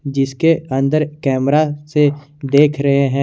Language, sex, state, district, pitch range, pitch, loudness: Hindi, male, Jharkhand, Garhwa, 135-150 Hz, 140 Hz, -16 LUFS